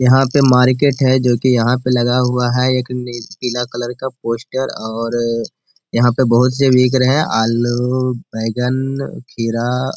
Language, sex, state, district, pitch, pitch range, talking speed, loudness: Hindi, male, Bihar, Gaya, 125 Hz, 120-130 Hz, 175 wpm, -16 LUFS